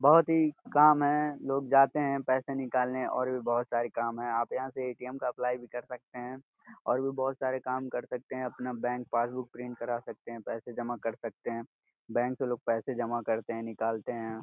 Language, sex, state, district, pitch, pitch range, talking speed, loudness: Hindi, male, Uttar Pradesh, Gorakhpur, 125 Hz, 120-130 Hz, 225 wpm, -31 LUFS